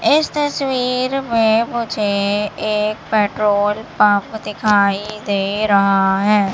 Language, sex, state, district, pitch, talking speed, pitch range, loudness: Hindi, male, Madhya Pradesh, Katni, 210 Hz, 100 wpm, 205-235 Hz, -17 LUFS